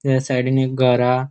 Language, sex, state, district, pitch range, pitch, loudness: Konkani, male, Goa, North and South Goa, 125-130 Hz, 130 Hz, -18 LUFS